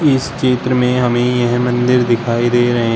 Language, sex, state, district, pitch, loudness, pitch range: Hindi, male, Uttar Pradesh, Shamli, 125 Hz, -14 LUFS, 120-125 Hz